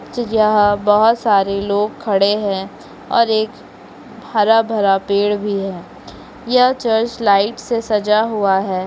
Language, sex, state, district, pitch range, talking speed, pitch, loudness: Hindi, female, Uttarakhand, Uttarkashi, 200-225 Hz, 140 wpm, 210 Hz, -16 LUFS